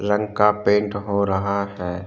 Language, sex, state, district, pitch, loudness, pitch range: Hindi, male, Uttarakhand, Tehri Garhwal, 100 Hz, -21 LUFS, 100-105 Hz